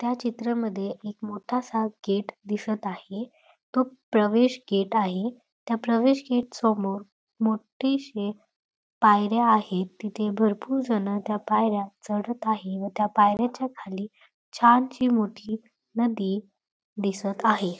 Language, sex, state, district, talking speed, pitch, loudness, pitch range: Marathi, female, Maharashtra, Dhule, 120 wpm, 215 Hz, -26 LUFS, 205-235 Hz